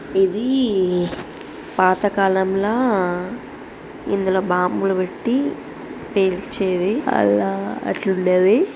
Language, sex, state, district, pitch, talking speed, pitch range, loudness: Telugu, female, Andhra Pradesh, Srikakulam, 190 Hz, 70 wpm, 180-200 Hz, -19 LUFS